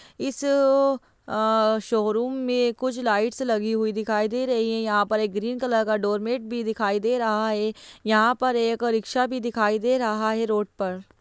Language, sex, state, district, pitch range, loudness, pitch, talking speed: Hindi, female, Bihar, Jahanabad, 215-245 Hz, -24 LUFS, 225 Hz, 200 wpm